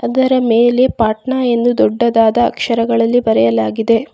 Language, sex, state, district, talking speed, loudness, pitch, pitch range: Kannada, female, Karnataka, Bangalore, 100 wpm, -13 LUFS, 235 Hz, 225-245 Hz